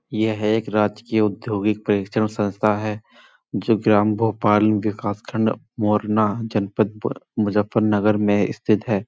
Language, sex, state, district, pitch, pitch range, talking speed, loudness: Hindi, male, Uttar Pradesh, Muzaffarnagar, 105 Hz, 105-110 Hz, 120 wpm, -21 LUFS